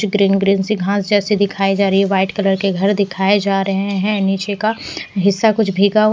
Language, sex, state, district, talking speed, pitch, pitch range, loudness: Hindi, female, Bihar, West Champaran, 225 wpm, 200 Hz, 195-205 Hz, -16 LUFS